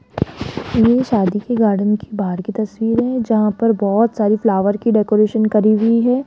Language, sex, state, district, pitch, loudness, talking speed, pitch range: Hindi, female, Rajasthan, Jaipur, 215 Hz, -16 LUFS, 170 wpm, 210-230 Hz